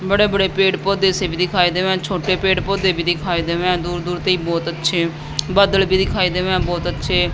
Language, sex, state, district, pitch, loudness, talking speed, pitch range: Hindi, female, Haryana, Jhajjar, 180 Hz, -18 LUFS, 215 wpm, 175-190 Hz